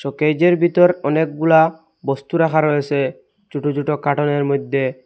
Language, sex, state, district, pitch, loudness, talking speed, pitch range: Bengali, male, Assam, Hailakandi, 150 Hz, -17 LUFS, 120 wpm, 140-165 Hz